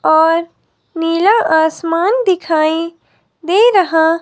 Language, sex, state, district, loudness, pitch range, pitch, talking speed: Hindi, female, Himachal Pradesh, Shimla, -13 LUFS, 320-375 Hz, 335 Hz, 85 wpm